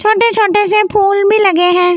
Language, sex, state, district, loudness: Hindi, female, Delhi, New Delhi, -10 LUFS